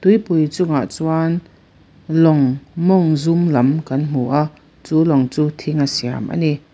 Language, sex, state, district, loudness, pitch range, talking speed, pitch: Mizo, female, Mizoram, Aizawl, -17 LUFS, 145-165 Hz, 180 wpm, 155 Hz